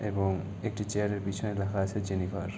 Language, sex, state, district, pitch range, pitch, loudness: Bengali, male, West Bengal, Malda, 95-105 Hz, 100 Hz, -32 LUFS